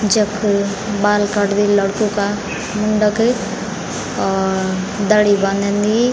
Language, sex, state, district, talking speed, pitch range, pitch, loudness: Garhwali, female, Uttarakhand, Tehri Garhwal, 90 wpm, 200-210 Hz, 205 Hz, -17 LUFS